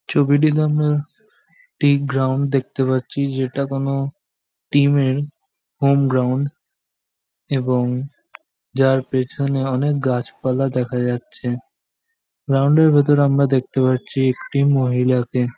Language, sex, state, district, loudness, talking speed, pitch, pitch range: Bengali, male, West Bengal, Jhargram, -19 LUFS, 105 wpm, 135 Hz, 130-140 Hz